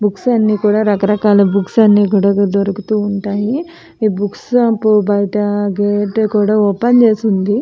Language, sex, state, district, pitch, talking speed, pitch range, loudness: Telugu, female, Andhra Pradesh, Anantapur, 210 Hz, 140 wpm, 205-215 Hz, -13 LUFS